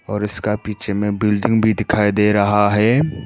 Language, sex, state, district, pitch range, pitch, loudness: Hindi, male, Arunachal Pradesh, Papum Pare, 105-110 Hz, 105 Hz, -17 LUFS